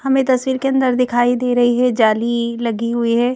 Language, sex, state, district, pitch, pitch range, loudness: Hindi, female, Madhya Pradesh, Bhopal, 245 Hz, 235-255 Hz, -16 LUFS